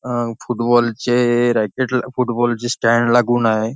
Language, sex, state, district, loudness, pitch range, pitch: Marathi, male, Maharashtra, Nagpur, -17 LUFS, 115-120 Hz, 120 Hz